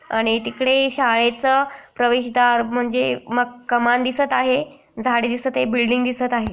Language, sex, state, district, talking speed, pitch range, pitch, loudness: Marathi, female, Maharashtra, Aurangabad, 140 wpm, 240-260 Hz, 245 Hz, -19 LUFS